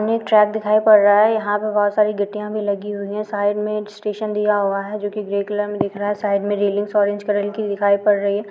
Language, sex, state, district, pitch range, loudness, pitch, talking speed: Hindi, female, Andhra Pradesh, Krishna, 205-210 Hz, -19 LUFS, 205 Hz, 290 wpm